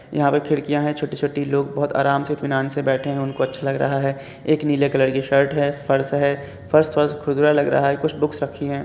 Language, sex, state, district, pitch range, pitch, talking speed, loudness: Hindi, male, Uttar Pradesh, Gorakhpur, 140-150 Hz, 140 Hz, 235 wpm, -20 LUFS